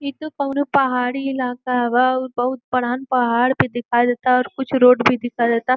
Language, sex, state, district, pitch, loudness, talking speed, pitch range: Bhojpuri, female, Uttar Pradesh, Gorakhpur, 250 Hz, -19 LUFS, 195 wpm, 245-265 Hz